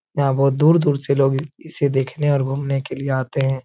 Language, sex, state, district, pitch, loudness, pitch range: Hindi, male, Uttar Pradesh, Etah, 140 Hz, -19 LUFS, 135-145 Hz